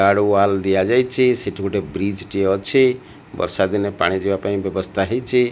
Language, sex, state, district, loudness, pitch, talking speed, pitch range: Odia, male, Odisha, Malkangiri, -19 LUFS, 100 Hz, 185 wpm, 95-120 Hz